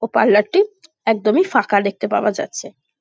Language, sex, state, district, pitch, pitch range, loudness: Bengali, female, West Bengal, Jhargram, 225 Hz, 210-330 Hz, -17 LUFS